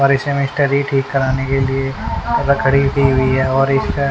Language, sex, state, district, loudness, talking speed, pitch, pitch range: Hindi, male, Haryana, Charkhi Dadri, -16 LUFS, 130 wpm, 135 Hz, 135-140 Hz